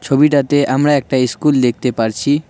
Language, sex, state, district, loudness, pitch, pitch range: Bengali, male, West Bengal, Cooch Behar, -14 LUFS, 135 Hz, 125-145 Hz